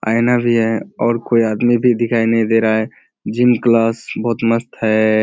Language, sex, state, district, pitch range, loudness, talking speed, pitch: Hindi, male, Bihar, Kishanganj, 110-120 Hz, -16 LUFS, 195 wpm, 115 Hz